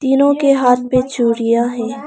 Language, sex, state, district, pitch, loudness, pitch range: Hindi, female, Arunachal Pradesh, Lower Dibang Valley, 250 Hz, -14 LUFS, 235-275 Hz